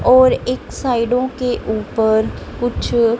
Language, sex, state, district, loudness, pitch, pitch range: Hindi, female, Punjab, Kapurthala, -17 LUFS, 245 Hz, 230-255 Hz